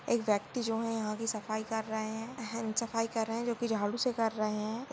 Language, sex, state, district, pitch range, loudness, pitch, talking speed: Hindi, female, Goa, North and South Goa, 215-230 Hz, -34 LUFS, 225 Hz, 245 wpm